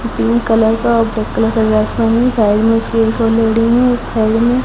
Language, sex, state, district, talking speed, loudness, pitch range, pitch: Hindi, female, Haryana, Charkhi Dadri, 205 wpm, -13 LUFS, 225-235 Hz, 225 Hz